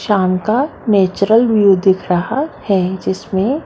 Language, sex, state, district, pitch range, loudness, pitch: Hindi, female, Maharashtra, Mumbai Suburban, 190-225 Hz, -15 LUFS, 200 Hz